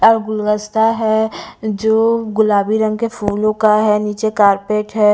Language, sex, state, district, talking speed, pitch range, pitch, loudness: Hindi, female, Punjab, Pathankot, 150 wpm, 210-220 Hz, 215 Hz, -15 LUFS